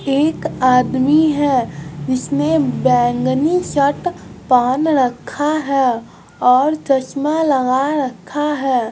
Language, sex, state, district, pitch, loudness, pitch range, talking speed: Hindi, male, Bihar, West Champaran, 270 Hz, -16 LUFS, 250-295 Hz, 95 wpm